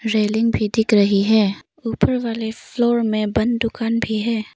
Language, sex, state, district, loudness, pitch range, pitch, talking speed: Hindi, female, Arunachal Pradesh, Papum Pare, -19 LUFS, 215-230 Hz, 225 Hz, 170 wpm